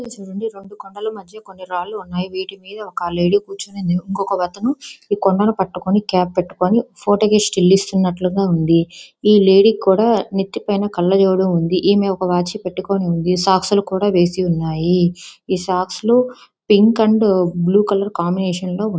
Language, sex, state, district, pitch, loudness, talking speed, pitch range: Telugu, female, Andhra Pradesh, Visakhapatnam, 195 Hz, -17 LUFS, 155 wpm, 180-205 Hz